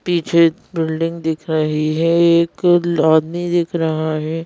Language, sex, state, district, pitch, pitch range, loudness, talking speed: Hindi, female, Madhya Pradesh, Bhopal, 165 Hz, 160-170 Hz, -17 LUFS, 135 wpm